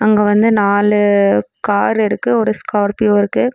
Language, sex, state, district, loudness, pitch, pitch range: Tamil, female, Tamil Nadu, Namakkal, -14 LUFS, 205 Hz, 200-210 Hz